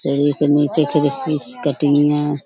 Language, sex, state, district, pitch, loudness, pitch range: Hindi, female, Uttar Pradesh, Budaun, 145 Hz, -17 LUFS, 145-150 Hz